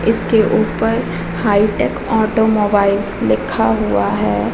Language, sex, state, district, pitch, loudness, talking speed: Hindi, female, Bihar, Vaishali, 205 Hz, -15 LUFS, 95 wpm